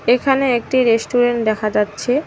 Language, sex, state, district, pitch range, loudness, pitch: Bengali, female, West Bengal, Cooch Behar, 225-255 Hz, -17 LUFS, 245 Hz